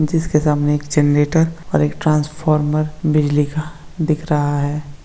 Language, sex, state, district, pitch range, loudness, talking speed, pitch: Hindi, male, Bihar, Begusarai, 145-155 Hz, -17 LUFS, 145 wpm, 150 Hz